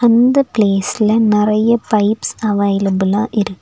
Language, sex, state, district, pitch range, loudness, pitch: Tamil, female, Tamil Nadu, Nilgiris, 200-225 Hz, -14 LUFS, 215 Hz